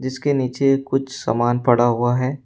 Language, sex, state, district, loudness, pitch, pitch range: Hindi, male, Uttar Pradesh, Shamli, -19 LUFS, 130 Hz, 120-135 Hz